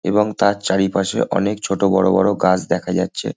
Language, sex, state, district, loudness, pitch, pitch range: Bengali, male, West Bengal, Kolkata, -18 LUFS, 100 Hz, 95-100 Hz